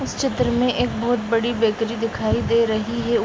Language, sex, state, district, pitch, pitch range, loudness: Hindi, female, Uttar Pradesh, Jalaun, 230 Hz, 220-235 Hz, -21 LUFS